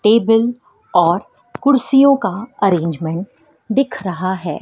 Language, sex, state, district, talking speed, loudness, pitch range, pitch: Hindi, female, Madhya Pradesh, Dhar, 105 wpm, -16 LUFS, 185-270 Hz, 225 Hz